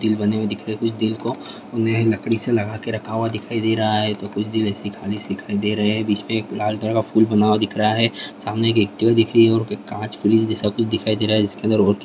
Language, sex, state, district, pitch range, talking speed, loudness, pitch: Hindi, male, Bihar, Vaishali, 105-110 Hz, 305 wpm, -20 LUFS, 110 Hz